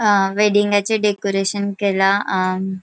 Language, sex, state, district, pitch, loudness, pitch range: Konkani, female, Goa, North and South Goa, 200 Hz, -18 LUFS, 195-205 Hz